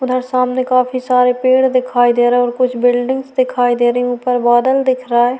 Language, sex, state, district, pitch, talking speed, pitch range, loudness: Hindi, female, Chhattisgarh, Sukma, 250 Hz, 220 wpm, 245-255 Hz, -14 LUFS